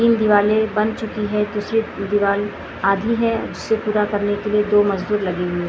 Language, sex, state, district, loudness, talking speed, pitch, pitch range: Hindi, female, Maharashtra, Gondia, -19 LUFS, 200 wpm, 210 Hz, 205-220 Hz